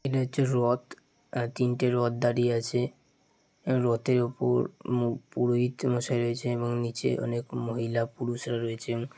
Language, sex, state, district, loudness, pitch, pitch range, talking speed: Bengali, male, West Bengal, Dakshin Dinajpur, -29 LUFS, 120 Hz, 120-125 Hz, 125 wpm